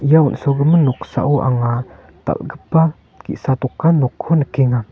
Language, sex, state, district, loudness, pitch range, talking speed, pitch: Garo, male, Meghalaya, North Garo Hills, -17 LUFS, 125-155 Hz, 110 wpm, 135 Hz